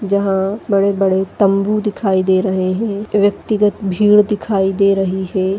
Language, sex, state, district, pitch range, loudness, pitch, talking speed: Hindi, female, Goa, North and South Goa, 190-210 Hz, -15 LUFS, 200 Hz, 150 wpm